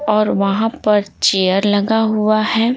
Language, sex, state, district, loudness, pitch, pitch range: Hindi, female, Bihar, Patna, -15 LUFS, 215 Hz, 205-220 Hz